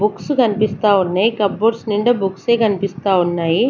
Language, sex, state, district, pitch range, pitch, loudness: Telugu, female, Andhra Pradesh, Sri Satya Sai, 195-225 Hz, 210 Hz, -17 LUFS